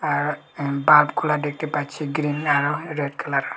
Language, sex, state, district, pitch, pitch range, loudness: Bengali, male, Tripura, Unakoti, 150 Hz, 145-150 Hz, -22 LUFS